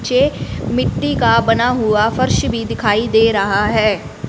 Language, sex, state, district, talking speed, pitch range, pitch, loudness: Hindi, female, Punjab, Fazilka, 155 wpm, 150-225 Hz, 215 Hz, -15 LUFS